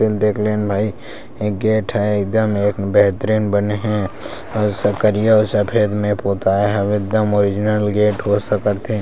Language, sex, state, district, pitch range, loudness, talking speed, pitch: Chhattisgarhi, male, Chhattisgarh, Sarguja, 100-105 Hz, -17 LUFS, 160 wpm, 105 Hz